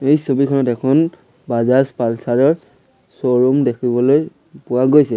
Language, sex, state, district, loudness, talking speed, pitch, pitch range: Assamese, male, Assam, Sonitpur, -16 LUFS, 115 wpm, 130 Hz, 125-140 Hz